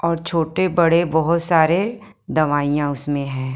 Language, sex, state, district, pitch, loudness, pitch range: Hindi, female, Himachal Pradesh, Shimla, 165 Hz, -19 LUFS, 145-170 Hz